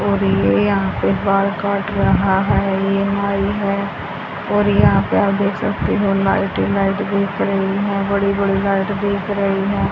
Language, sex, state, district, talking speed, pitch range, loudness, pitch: Hindi, female, Haryana, Rohtak, 180 wpm, 195-200 Hz, -17 LUFS, 200 Hz